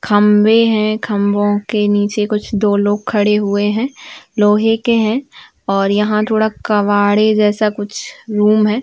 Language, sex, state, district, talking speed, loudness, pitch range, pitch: Hindi, female, Uttar Pradesh, Varanasi, 150 wpm, -14 LUFS, 205-220 Hz, 210 Hz